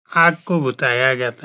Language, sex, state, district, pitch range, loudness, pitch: Hindi, male, Uttar Pradesh, Etah, 130-170 Hz, -17 LUFS, 135 Hz